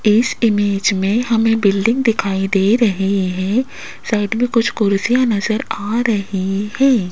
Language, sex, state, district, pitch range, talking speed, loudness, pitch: Hindi, female, Rajasthan, Jaipur, 195-230 Hz, 145 wpm, -16 LUFS, 215 Hz